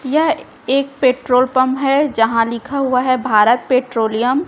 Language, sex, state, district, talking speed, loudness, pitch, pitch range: Hindi, female, Chhattisgarh, Raipur, 145 wpm, -16 LUFS, 255 Hz, 240-275 Hz